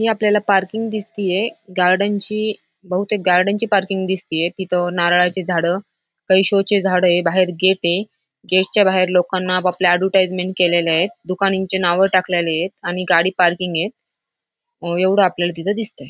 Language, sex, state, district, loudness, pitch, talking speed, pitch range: Marathi, female, Maharashtra, Aurangabad, -17 LUFS, 185 Hz, 140 wpm, 180-195 Hz